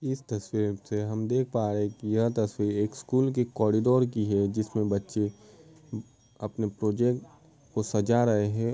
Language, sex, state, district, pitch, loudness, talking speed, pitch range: Hindi, male, Uttar Pradesh, Varanasi, 110 Hz, -28 LUFS, 170 wpm, 105-125 Hz